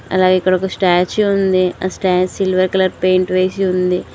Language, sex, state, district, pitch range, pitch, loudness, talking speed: Telugu, female, Telangana, Mahabubabad, 185-190 Hz, 185 Hz, -15 LUFS, 175 wpm